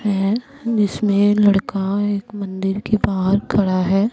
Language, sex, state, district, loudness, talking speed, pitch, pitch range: Hindi, female, Punjab, Pathankot, -19 LUFS, 130 wpm, 200 Hz, 195-210 Hz